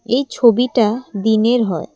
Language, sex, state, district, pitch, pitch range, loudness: Bengali, female, Assam, Kamrup Metropolitan, 235 Hz, 220-245 Hz, -16 LUFS